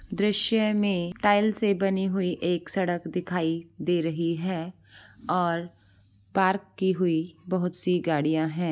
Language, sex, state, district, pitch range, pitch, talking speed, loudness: Hindi, female, Andhra Pradesh, Guntur, 165-190 Hz, 180 Hz, 145 wpm, -26 LUFS